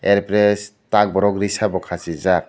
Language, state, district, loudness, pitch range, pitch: Kokborok, Tripura, Dhalai, -19 LUFS, 95-105 Hz, 100 Hz